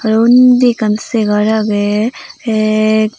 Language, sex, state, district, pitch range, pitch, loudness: Chakma, female, Tripura, Unakoti, 215-235 Hz, 220 Hz, -12 LUFS